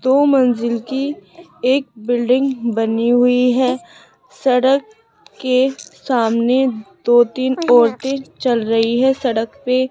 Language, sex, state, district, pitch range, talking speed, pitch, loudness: Hindi, female, Rajasthan, Jaipur, 240-270 Hz, 120 wpm, 255 Hz, -16 LUFS